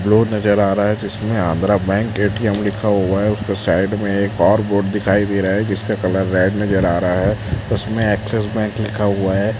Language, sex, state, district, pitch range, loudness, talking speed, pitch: Hindi, male, Chhattisgarh, Raipur, 95-105 Hz, -17 LUFS, 220 wpm, 105 Hz